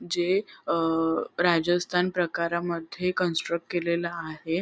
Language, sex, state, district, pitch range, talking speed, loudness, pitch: Marathi, female, Maharashtra, Sindhudurg, 170-175 Hz, 90 wpm, -27 LUFS, 170 Hz